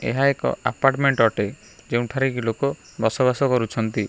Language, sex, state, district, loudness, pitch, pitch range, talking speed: Odia, male, Odisha, Khordha, -22 LUFS, 125 Hz, 115-135 Hz, 130 wpm